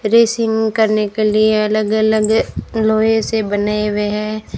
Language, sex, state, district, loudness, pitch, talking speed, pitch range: Hindi, female, Rajasthan, Bikaner, -15 LUFS, 215 Hz, 145 wpm, 210-220 Hz